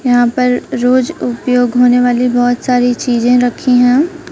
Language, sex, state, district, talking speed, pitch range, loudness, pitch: Hindi, female, Bihar, Kaimur, 155 wpm, 245-250 Hz, -12 LUFS, 245 Hz